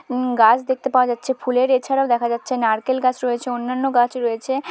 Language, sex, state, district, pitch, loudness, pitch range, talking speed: Bengali, female, West Bengal, Dakshin Dinajpur, 250 Hz, -19 LUFS, 240-260 Hz, 180 wpm